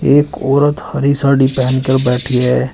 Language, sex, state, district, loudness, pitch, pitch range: Hindi, male, Uttar Pradesh, Shamli, -13 LUFS, 135 Hz, 130-140 Hz